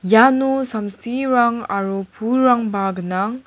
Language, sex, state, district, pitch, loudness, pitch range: Garo, female, Meghalaya, West Garo Hills, 225 Hz, -18 LUFS, 195-255 Hz